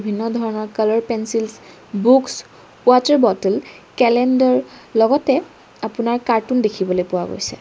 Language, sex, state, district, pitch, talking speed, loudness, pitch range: Assamese, female, Assam, Kamrup Metropolitan, 230 Hz, 110 wpm, -18 LUFS, 215-250 Hz